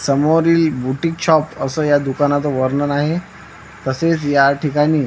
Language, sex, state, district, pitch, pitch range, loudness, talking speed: Marathi, female, Maharashtra, Washim, 145 Hz, 140-160 Hz, -17 LUFS, 130 wpm